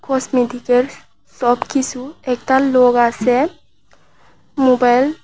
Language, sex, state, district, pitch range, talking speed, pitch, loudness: Bengali, female, Tripura, West Tripura, 245-270 Hz, 80 wpm, 255 Hz, -16 LUFS